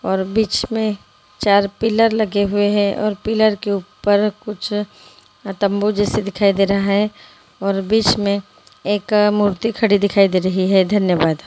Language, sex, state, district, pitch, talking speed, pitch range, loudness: Hindi, female, Bihar, Gopalganj, 205 Hz, 155 wpm, 195-210 Hz, -17 LUFS